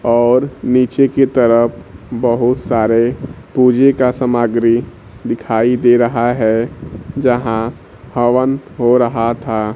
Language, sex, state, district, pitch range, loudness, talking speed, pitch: Hindi, male, Bihar, Kaimur, 115-125 Hz, -14 LUFS, 110 wpm, 120 Hz